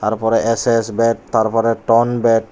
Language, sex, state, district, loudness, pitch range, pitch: Chakma, male, Tripura, Unakoti, -16 LUFS, 110-115 Hz, 115 Hz